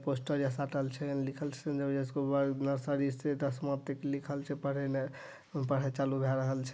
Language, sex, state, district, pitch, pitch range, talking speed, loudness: Maithili, male, Bihar, Madhepura, 140 Hz, 135-140 Hz, 180 wpm, -35 LUFS